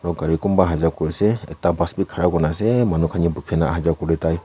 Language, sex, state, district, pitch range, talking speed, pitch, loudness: Nagamese, female, Nagaland, Kohima, 80-90 Hz, 295 wpm, 85 Hz, -20 LUFS